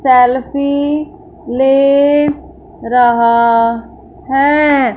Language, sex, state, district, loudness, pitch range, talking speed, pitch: Hindi, female, Punjab, Fazilka, -12 LUFS, 245-290 Hz, 50 wpm, 275 Hz